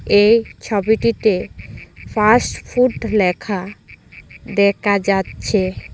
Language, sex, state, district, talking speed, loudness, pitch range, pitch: Bengali, female, Assam, Hailakandi, 70 wpm, -17 LUFS, 195-220 Hz, 205 Hz